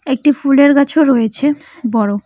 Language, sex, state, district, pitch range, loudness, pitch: Bengali, female, West Bengal, Cooch Behar, 235-290 Hz, -13 LUFS, 275 Hz